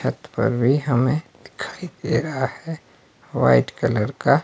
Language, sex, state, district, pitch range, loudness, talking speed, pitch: Hindi, male, Himachal Pradesh, Shimla, 120-155 Hz, -22 LUFS, 150 wpm, 135 Hz